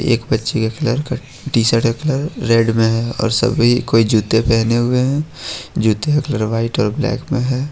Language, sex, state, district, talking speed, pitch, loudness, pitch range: Hindi, male, Jharkhand, Ranchi, 210 wpm, 120 Hz, -17 LUFS, 115-130 Hz